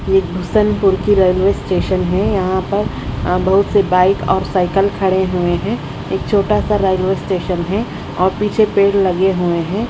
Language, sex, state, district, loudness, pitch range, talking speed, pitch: Hindi, female, Odisha, Khordha, -16 LUFS, 180-200 Hz, 175 wpm, 190 Hz